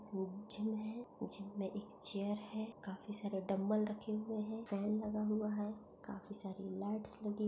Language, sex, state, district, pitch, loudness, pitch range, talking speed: Hindi, female, Maharashtra, Pune, 210 Hz, -42 LUFS, 200-215 Hz, 175 wpm